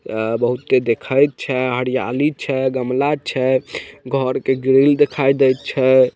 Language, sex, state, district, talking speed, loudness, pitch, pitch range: Maithili, male, Bihar, Samastipur, 135 wpm, -17 LUFS, 130 Hz, 130-135 Hz